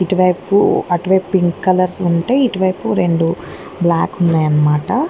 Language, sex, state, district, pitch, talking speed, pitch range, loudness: Telugu, female, Andhra Pradesh, Guntur, 185 Hz, 95 wpm, 170-190 Hz, -15 LUFS